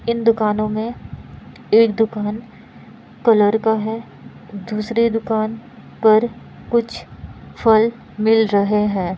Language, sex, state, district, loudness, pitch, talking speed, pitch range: Hindi, female, Bihar, Kishanganj, -18 LUFS, 220 Hz, 105 wpm, 215-230 Hz